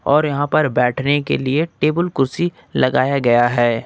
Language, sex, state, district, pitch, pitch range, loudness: Hindi, male, Uttar Pradesh, Lucknow, 140 Hz, 125-155 Hz, -17 LUFS